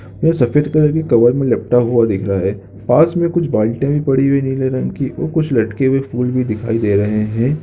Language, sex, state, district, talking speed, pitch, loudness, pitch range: Hindi, male, Chhattisgarh, Bilaspur, 250 wpm, 125 Hz, -15 LUFS, 110-145 Hz